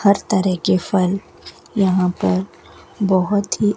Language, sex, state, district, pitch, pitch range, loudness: Hindi, female, Rajasthan, Bikaner, 190 Hz, 185-200 Hz, -19 LUFS